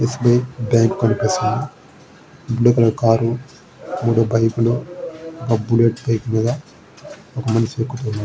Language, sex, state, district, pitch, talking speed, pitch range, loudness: Telugu, male, Andhra Pradesh, Srikakulam, 115 Hz, 115 wpm, 115-125 Hz, -18 LUFS